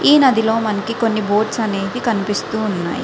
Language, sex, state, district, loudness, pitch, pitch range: Telugu, female, Andhra Pradesh, Visakhapatnam, -17 LUFS, 220 Hz, 205-230 Hz